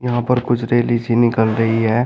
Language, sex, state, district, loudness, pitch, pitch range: Hindi, male, Uttar Pradesh, Shamli, -17 LUFS, 120 Hz, 115-120 Hz